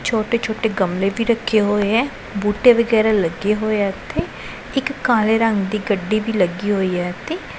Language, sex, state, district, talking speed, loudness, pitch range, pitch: Punjabi, female, Punjab, Pathankot, 180 wpm, -19 LUFS, 200-225 Hz, 215 Hz